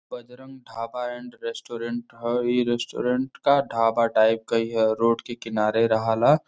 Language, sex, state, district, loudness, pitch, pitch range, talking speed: Bhojpuri, male, Uttar Pradesh, Varanasi, -24 LUFS, 115 Hz, 115-125 Hz, 165 wpm